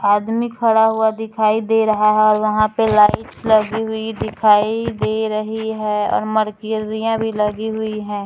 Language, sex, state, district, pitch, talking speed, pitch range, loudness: Hindi, female, Maharashtra, Nagpur, 220 Hz, 160 wpm, 215-220 Hz, -17 LUFS